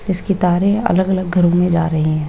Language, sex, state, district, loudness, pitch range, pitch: Hindi, female, Rajasthan, Jaipur, -16 LUFS, 170-190 Hz, 180 Hz